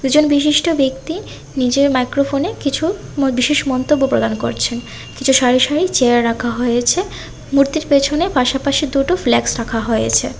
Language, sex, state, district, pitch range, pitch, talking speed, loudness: Bengali, female, Tripura, West Tripura, 245-295 Hz, 270 Hz, 135 wpm, -16 LUFS